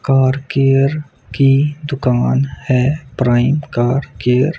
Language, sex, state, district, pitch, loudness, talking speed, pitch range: Hindi, male, Punjab, Kapurthala, 135 Hz, -15 LUFS, 115 wpm, 125-140 Hz